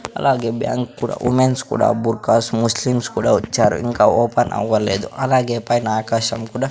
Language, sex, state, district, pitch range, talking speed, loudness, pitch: Telugu, male, Andhra Pradesh, Sri Satya Sai, 115-125 Hz, 145 wpm, -18 LUFS, 120 Hz